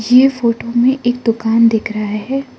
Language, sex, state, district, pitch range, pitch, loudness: Hindi, female, Arunachal Pradesh, Lower Dibang Valley, 225-250 Hz, 235 Hz, -14 LUFS